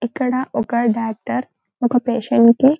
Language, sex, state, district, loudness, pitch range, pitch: Telugu, female, Telangana, Karimnagar, -18 LUFS, 230-255 Hz, 240 Hz